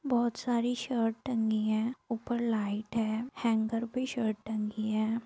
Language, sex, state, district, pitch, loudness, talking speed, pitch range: Hindi, female, Bihar, Gaya, 230 Hz, -32 LUFS, 150 wpm, 220-240 Hz